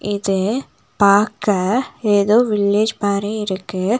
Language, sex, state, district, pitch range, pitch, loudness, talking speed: Tamil, female, Tamil Nadu, Nilgiris, 200-215 Hz, 205 Hz, -17 LUFS, 90 wpm